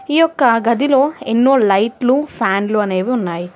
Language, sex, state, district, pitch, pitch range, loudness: Telugu, female, Telangana, Hyderabad, 235 Hz, 200-270 Hz, -15 LUFS